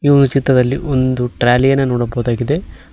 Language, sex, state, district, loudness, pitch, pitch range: Kannada, male, Karnataka, Koppal, -15 LUFS, 130 Hz, 120-135 Hz